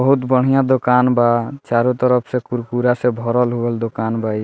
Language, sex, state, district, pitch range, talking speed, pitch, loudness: Bhojpuri, male, Bihar, Muzaffarpur, 120-125 Hz, 175 wpm, 125 Hz, -17 LUFS